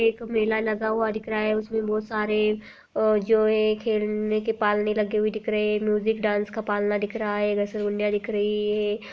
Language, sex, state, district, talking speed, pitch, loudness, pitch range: Hindi, female, Uttarakhand, Tehri Garhwal, 195 wpm, 215 Hz, -25 LUFS, 210-220 Hz